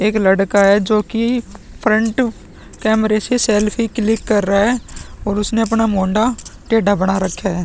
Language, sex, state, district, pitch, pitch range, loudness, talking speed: Hindi, male, Bihar, Vaishali, 215 Hz, 200-225 Hz, -16 LUFS, 165 wpm